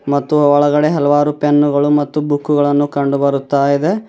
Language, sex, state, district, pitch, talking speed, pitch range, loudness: Kannada, male, Karnataka, Bidar, 145 Hz, 130 wpm, 140-150 Hz, -14 LUFS